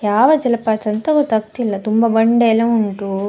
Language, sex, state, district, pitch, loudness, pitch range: Kannada, female, Karnataka, Dakshina Kannada, 225 Hz, -16 LUFS, 210-235 Hz